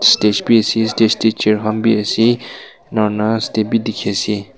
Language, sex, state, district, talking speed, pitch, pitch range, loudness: Nagamese, male, Nagaland, Kohima, 195 wpm, 110 Hz, 105-115 Hz, -15 LUFS